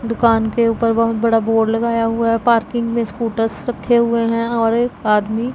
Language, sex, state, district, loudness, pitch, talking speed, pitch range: Hindi, female, Punjab, Pathankot, -17 LUFS, 230 Hz, 195 wpm, 225-235 Hz